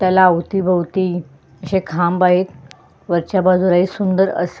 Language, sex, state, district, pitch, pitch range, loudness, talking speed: Marathi, female, Maharashtra, Sindhudurg, 180 Hz, 170-190 Hz, -16 LUFS, 130 wpm